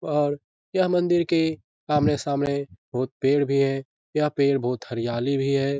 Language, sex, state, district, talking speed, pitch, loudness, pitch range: Hindi, male, Bihar, Lakhisarai, 155 wpm, 140 Hz, -24 LUFS, 135-150 Hz